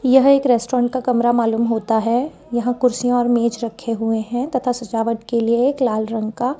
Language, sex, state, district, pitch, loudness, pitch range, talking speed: Hindi, female, Rajasthan, Jaipur, 240 Hz, -19 LUFS, 230-250 Hz, 220 wpm